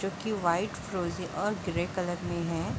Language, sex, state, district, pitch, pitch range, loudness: Hindi, female, Bihar, Gopalganj, 180 Hz, 170-195 Hz, -32 LUFS